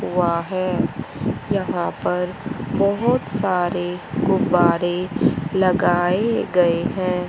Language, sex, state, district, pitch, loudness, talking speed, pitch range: Hindi, female, Haryana, Rohtak, 180 Hz, -20 LUFS, 80 wpm, 175-190 Hz